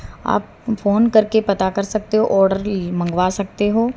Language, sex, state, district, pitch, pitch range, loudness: Hindi, female, Haryana, Rohtak, 205 Hz, 190-215 Hz, -18 LUFS